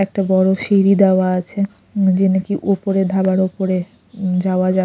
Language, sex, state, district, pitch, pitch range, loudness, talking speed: Bengali, female, Odisha, Khordha, 190 Hz, 185-195 Hz, -17 LUFS, 150 wpm